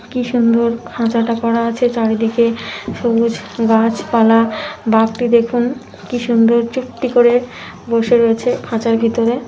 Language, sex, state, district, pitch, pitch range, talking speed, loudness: Bengali, female, West Bengal, Jhargram, 235 Hz, 230-245 Hz, 115 wpm, -15 LUFS